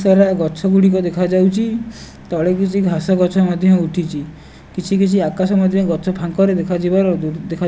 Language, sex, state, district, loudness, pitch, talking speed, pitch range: Odia, male, Odisha, Nuapada, -16 LUFS, 185 Hz, 155 wpm, 175-195 Hz